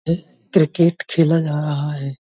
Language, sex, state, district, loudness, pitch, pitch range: Hindi, male, Uttar Pradesh, Budaun, -19 LUFS, 155 Hz, 145-165 Hz